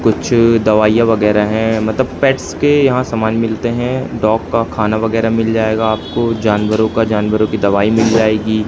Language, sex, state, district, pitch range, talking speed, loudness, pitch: Hindi, male, Madhya Pradesh, Katni, 110-115 Hz, 175 wpm, -14 LUFS, 110 Hz